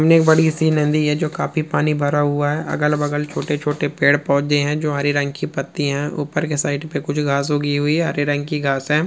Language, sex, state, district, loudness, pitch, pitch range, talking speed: Hindi, male, Rajasthan, Churu, -19 LUFS, 145 Hz, 145-150 Hz, 250 wpm